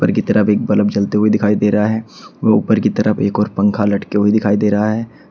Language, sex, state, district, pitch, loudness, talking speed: Hindi, male, Uttar Pradesh, Shamli, 105 Hz, -15 LUFS, 260 wpm